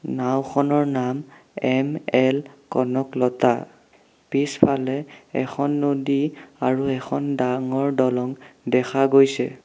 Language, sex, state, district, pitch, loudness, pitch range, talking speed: Assamese, male, Assam, Sonitpur, 135 Hz, -22 LUFS, 130-140 Hz, 80 wpm